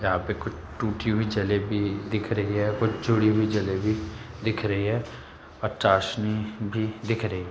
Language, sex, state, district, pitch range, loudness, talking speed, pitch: Hindi, male, Uttar Pradesh, Jalaun, 100-110 Hz, -26 LUFS, 175 wpm, 105 Hz